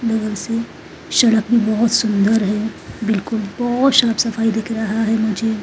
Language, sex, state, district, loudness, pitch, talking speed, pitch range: Hindi, female, Uttarakhand, Tehri Garhwal, -17 LUFS, 225 Hz, 160 wpm, 215-230 Hz